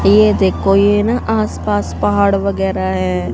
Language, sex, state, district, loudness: Hindi, female, Haryana, Jhajjar, -14 LUFS